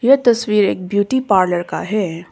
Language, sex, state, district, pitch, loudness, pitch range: Hindi, female, Arunachal Pradesh, Papum Pare, 205 Hz, -16 LUFS, 185-235 Hz